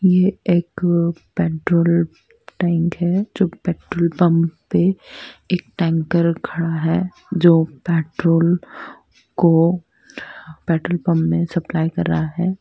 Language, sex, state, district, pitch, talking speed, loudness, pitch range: Hindi, female, Andhra Pradesh, Guntur, 170 Hz, 110 wpm, -19 LUFS, 165-180 Hz